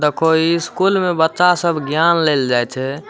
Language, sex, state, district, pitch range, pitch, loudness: Maithili, male, Bihar, Samastipur, 145-170 Hz, 160 Hz, -16 LUFS